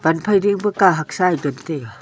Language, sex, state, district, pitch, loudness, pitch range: Wancho, female, Arunachal Pradesh, Longding, 170 Hz, -18 LUFS, 150-195 Hz